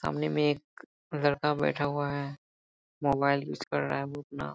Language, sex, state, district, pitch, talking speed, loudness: Hindi, male, Bihar, Jahanabad, 140 Hz, 195 wpm, -30 LUFS